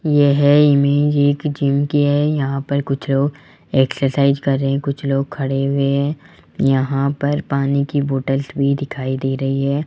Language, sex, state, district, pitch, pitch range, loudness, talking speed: Hindi, male, Rajasthan, Jaipur, 140 Hz, 135-145 Hz, -18 LUFS, 175 wpm